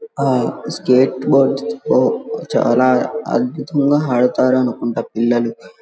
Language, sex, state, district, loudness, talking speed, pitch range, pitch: Telugu, male, Andhra Pradesh, Guntur, -16 LUFS, 70 wpm, 120-145 Hz, 130 Hz